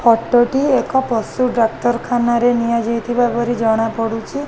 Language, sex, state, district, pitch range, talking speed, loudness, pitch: Odia, female, Odisha, Khordha, 230-245 Hz, 120 wpm, -17 LUFS, 240 Hz